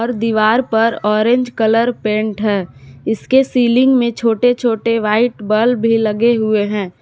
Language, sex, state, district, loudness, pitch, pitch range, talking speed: Hindi, female, Jharkhand, Palamu, -15 LUFS, 225 Hz, 215-240 Hz, 145 wpm